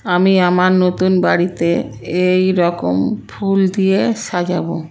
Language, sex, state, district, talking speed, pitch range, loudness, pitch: Bengali, female, West Bengal, Kolkata, 100 wpm, 170-190 Hz, -15 LUFS, 180 Hz